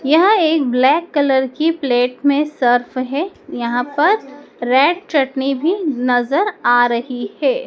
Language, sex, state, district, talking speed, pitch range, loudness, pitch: Hindi, female, Madhya Pradesh, Dhar, 140 wpm, 250-320 Hz, -16 LUFS, 280 Hz